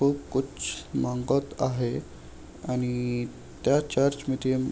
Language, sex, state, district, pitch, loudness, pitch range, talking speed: Marathi, male, Maharashtra, Aurangabad, 130 Hz, -28 LUFS, 125-140 Hz, 100 wpm